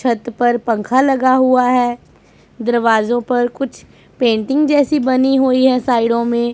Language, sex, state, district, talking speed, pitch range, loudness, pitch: Hindi, male, Punjab, Pathankot, 145 wpm, 240-260 Hz, -15 LUFS, 245 Hz